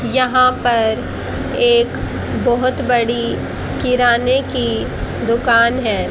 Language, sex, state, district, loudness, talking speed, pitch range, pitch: Hindi, female, Haryana, Jhajjar, -16 LUFS, 90 wpm, 235-255 Hz, 245 Hz